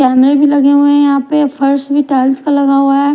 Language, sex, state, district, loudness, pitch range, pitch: Hindi, female, Punjab, Kapurthala, -10 LUFS, 275-285 Hz, 280 Hz